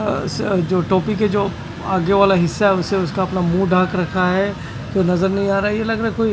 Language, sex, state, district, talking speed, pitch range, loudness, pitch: Hindi, male, Punjab, Fazilka, 245 wpm, 185-200 Hz, -18 LUFS, 190 Hz